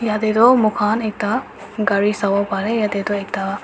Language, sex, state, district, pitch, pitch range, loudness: Nagamese, female, Nagaland, Dimapur, 210 Hz, 200-215 Hz, -18 LUFS